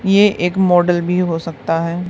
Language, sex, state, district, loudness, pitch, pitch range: Hindi, female, Haryana, Charkhi Dadri, -16 LUFS, 175 Hz, 170-180 Hz